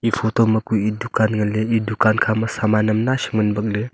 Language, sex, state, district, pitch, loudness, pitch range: Wancho, male, Arunachal Pradesh, Longding, 110 Hz, -19 LUFS, 110-115 Hz